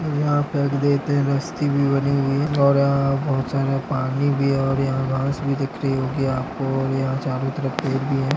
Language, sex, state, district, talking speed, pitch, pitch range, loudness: Hindi, male, Maharashtra, Nagpur, 220 wpm, 140 Hz, 135-140 Hz, -21 LUFS